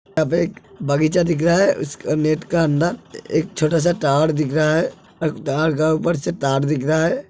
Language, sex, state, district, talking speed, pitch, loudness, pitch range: Hindi, male, Uttar Pradesh, Hamirpur, 205 wpm, 155 Hz, -19 LUFS, 155-170 Hz